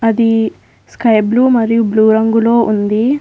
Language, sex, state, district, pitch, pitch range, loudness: Telugu, female, Telangana, Hyderabad, 225 Hz, 220-230 Hz, -12 LUFS